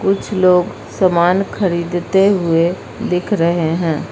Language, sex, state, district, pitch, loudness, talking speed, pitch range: Hindi, female, Uttar Pradesh, Lucknow, 180 Hz, -16 LUFS, 115 wpm, 170-195 Hz